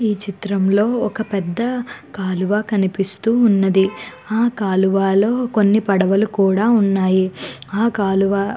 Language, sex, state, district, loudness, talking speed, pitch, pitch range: Telugu, female, Andhra Pradesh, Guntur, -17 LUFS, 110 wpm, 200 Hz, 195-220 Hz